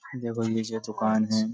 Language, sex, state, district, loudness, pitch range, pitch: Hindi, male, Uttar Pradesh, Budaun, -28 LUFS, 110-115 Hz, 110 Hz